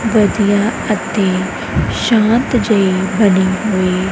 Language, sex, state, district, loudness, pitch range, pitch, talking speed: Punjabi, female, Punjab, Kapurthala, -14 LUFS, 190-220 Hz, 205 Hz, 85 wpm